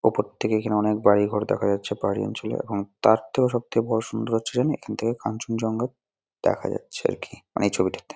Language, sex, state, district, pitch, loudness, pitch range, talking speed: Bengali, male, West Bengal, Jalpaiguri, 110 Hz, -25 LUFS, 105-115 Hz, 205 wpm